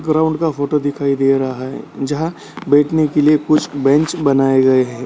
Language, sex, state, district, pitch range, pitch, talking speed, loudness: Hindi, male, Bihar, Gaya, 135-155 Hz, 145 Hz, 190 wpm, -15 LUFS